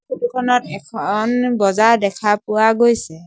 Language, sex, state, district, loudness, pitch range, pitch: Assamese, male, Assam, Sonitpur, -16 LUFS, 210-245 Hz, 220 Hz